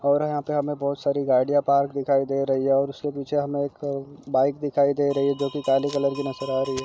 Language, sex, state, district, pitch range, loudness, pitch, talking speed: Hindi, male, Chhattisgarh, Jashpur, 135-145 Hz, -24 LUFS, 140 Hz, 270 wpm